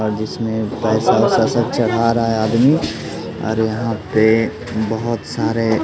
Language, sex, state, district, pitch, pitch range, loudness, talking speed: Hindi, male, Bihar, Katihar, 110 Hz, 110-115 Hz, -17 LUFS, 135 wpm